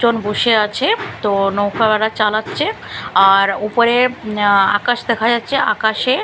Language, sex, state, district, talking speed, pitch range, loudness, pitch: Bengali, female, Bihar, Katihar, 125 wpm, 205-235 Hz, -15 LUFS, 220 Hz